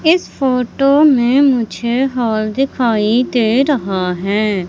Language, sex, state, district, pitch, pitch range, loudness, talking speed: Hindi, female, Madhya Pradesh, Katni, 245 Hz, 215-270 Hz, -14 LUFS, 115 wpm